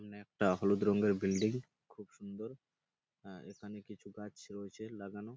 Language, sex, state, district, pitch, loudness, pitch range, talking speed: Bengali, male, West Bengal, Purulia, 105 Hz, -36 LUFS, 100-110 Hz, 145 wpm